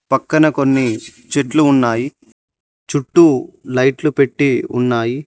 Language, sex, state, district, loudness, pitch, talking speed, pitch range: Telugu, male, Telangana, Mahabubabad, -15 LUFS, 135 Hz, 90 wpm, 125-150 Hz